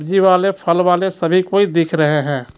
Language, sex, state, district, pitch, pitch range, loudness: Hindi, male, Jharkhand, Ranchi, 180 Hz, 155-190 Hz, -15 LUFS